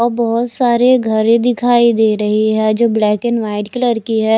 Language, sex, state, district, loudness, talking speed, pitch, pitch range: Hindi, female, Odisha, Nuapada, -14 LUFS, 205 wpm, 230 Hz, 220-240 Hz